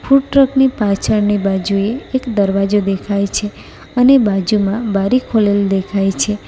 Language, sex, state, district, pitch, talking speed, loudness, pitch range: Gujarati, female, Gujarat, Valsad, 205 Hz, 130 wpm, -15 LUFS, 195-245 Hz